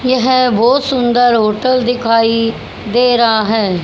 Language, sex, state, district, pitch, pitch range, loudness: Hindi, female, Haryana, Jhajjar, 240 Hz, 225-255 Hz, -12 LUFS